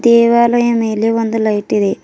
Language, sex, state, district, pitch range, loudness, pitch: Kannada, female, Karnataka, Bidar, 220-235 Hz, -13 LUFS, 230 Hz